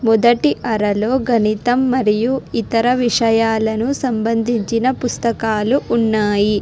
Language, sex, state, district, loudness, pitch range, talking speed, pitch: Telugu, female, Telangana, Hyderabad, -17 LUFS, 220-245 Hz, 80 wpm, 230 Hz